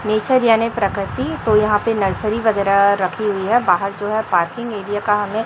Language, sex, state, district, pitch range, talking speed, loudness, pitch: Hindi, female, Chhattisgarh, Raipur, 200-220 Hz, 195 wpm, -17 LUFS, 210 Hz